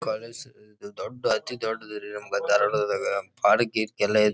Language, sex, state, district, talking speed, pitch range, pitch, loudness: Kannada, male, Karnataka, Dharwad, 195 wpm, 105-115 Hz, 105 Hz, -26 LUFS